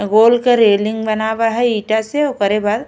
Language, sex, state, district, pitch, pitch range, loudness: Bhojpuri, female, Uttar Pradesh, Ghazipur, 220 Hz, 215-235 Hz, -15 LUFS